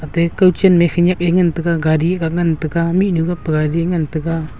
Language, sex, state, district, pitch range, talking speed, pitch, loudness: Wancho, male, Arunachal Pradesh, Longding, 160-175 Hz, 195 wpm, 170 Hz, -16 LUFS